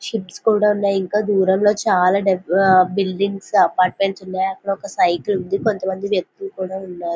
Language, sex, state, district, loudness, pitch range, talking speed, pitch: Telugu, female, Andhra Pradesh, Visakhapatnam, -18 LUFS, 185-200 Hz, 160 wpm, 195 Hz